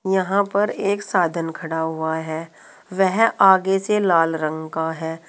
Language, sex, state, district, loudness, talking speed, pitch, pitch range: Hindi, female, Uttar Pradesh, Saharanpur, -20 LUFS, 160 wpm, 170 Hz, 160-195 Hz